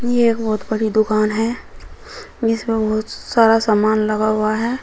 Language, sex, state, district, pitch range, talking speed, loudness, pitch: Hindi, female, Uttar Pradesh, Shamli, 215-230 Hz, 160 wpm, -18 LUFS, 220 Hz